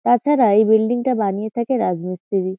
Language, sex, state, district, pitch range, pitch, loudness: Bengali, female, West Bengal, Kolkata, 195-245 Hz, 220 Hz, -18 LUFS